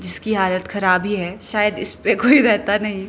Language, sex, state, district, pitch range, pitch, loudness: Hindi, female, Himachal Pradesh, Shimla, 185-215 Hz, 205 Hz, -18 LUFS